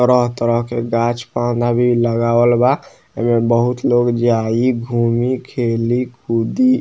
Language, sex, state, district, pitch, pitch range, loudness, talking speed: Bhojpuri, male, Bihar, Muzaffarpur, 120 Hz, 115-125 Hz, -16 LUFS, 140 wpm